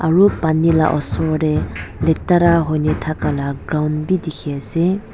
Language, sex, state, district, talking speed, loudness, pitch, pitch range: Nagamese, female, Nagaland, Dimapur, 165 wpm, -18 LUFS, 160 Hz, 150-170 Hz